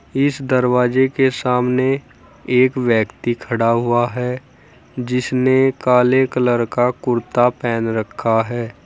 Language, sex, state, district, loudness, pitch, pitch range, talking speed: Hindi, male, Uttar Pradesh, Saharanpur, -17 LUFS, 125 Hz, 120-130 Hz, 115 wpm